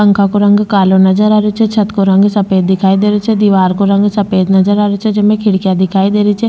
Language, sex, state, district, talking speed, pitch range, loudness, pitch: Rajasthani, female, Rajasthan, Churu, 275 wpm, 190-210 Hz, -10 LUFS, 205 Hz